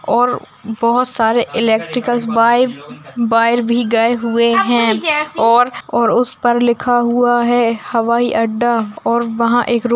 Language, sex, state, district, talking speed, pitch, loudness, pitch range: Hindi, female, Bihar, Bhagalpur, 140 wpm, 235 Hz, -14 LUFS, 230-240 Hz